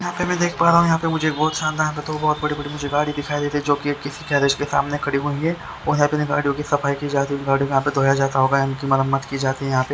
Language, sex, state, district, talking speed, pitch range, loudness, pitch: Hindi, male, Haryana, Charkhi Dadri, 290 wpm, 140-155 Hz, -20 LUFS, 145 Hz